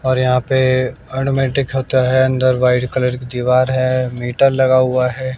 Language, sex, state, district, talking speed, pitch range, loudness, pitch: Hindi, male, Bihar, West Champaran, 170 wpm, 125-130 Hz, -16 LUFS, 130 Hz